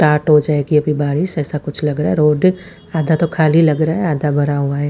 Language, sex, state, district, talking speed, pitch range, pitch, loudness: Hindi, female, Chandigarh, Chandigarh, 255 wpm, 150-160 Hz, 150 Hz, -15 LUFS